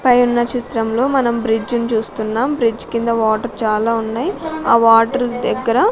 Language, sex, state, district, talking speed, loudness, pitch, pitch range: Telugu, female, Andhra Pradesh, Sri Satya Sai, 140 wpm, -16 LUFS, 235 Hz, 225-250 Hz